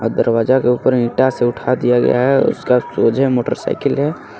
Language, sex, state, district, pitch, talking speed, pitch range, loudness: Hindi, male, Jharkhand, Garhwa, 125 Hz, 175 wpm, 120-130 Hz, -15 LUFS